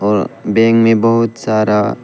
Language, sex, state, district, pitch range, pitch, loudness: Hindi, male, Arunachal Pradesh, Lower Dibang Valley, 105-115 Hz, 110 Hz, -13 LUFS